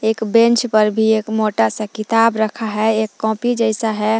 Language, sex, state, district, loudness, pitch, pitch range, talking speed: Hindi, female, Jharkhand, Palamu, -17 LUFS, 220 Hz, 215-225 Hz, 200 wpm